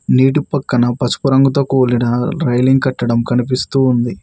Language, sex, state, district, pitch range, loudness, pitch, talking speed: Telugu, male, Telangana, Mahabubabad, 120-135 Hz, -14 LUFS, 125 Hz, 130 wpm